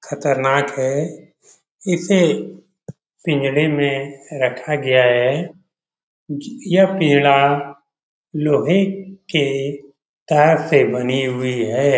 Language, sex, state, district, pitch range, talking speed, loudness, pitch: Hindi, male, Bihar, Jamui, 135-165 Hz, 85 wpm, -17 LUFS, 145 Hz